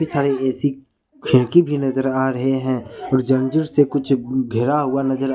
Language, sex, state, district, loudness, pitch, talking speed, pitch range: Hindi, male, Jharkhand, Ranchi, -19 LUFS, 135 Hz, 180 wpm, 130-140 Hz